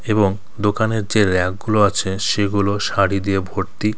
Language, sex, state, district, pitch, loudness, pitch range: Bengali, male, West Bengal, Cooch Behar, 100 Hz, -19 LUFS, 95-105 Hz